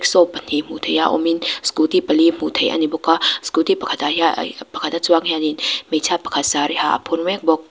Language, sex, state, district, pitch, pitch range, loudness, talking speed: Mizo, female, Mizoram, Aizawl, 165 Hz, 155-170 Hz, -18 LUFS, 240 wpm